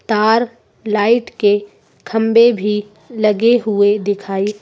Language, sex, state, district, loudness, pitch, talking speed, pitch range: Hindi, female, Madhya Pradesh, Bhopal, -15 LUFS, 210 Hz, 105 wpm, 205-230 Hz